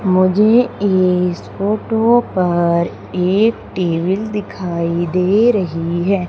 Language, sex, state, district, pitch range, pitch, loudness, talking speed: Hindi, female, Madhya Pradesh, Umaria, 175-210 Hz, 185 Hz, -16 LUFS, 95 wpm